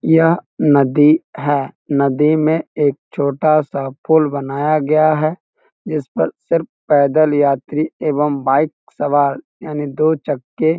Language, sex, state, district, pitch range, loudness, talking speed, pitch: Hindi, male, Bihar, Muzaffarpur, 140-155 Hz, -16 LUFS, 130 wpm, 150 Hz